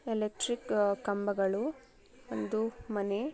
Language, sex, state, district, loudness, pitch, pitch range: Kannada, female, Karnataka, Shimoga, -33 LUFS, 210 Hz, 200-240 Hz